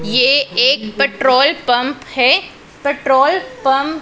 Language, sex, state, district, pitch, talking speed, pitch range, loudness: Hindi, female, Punjab, Pathankot, 270 Hz, 120 wpm, 250-285 Hz, -14 LUFS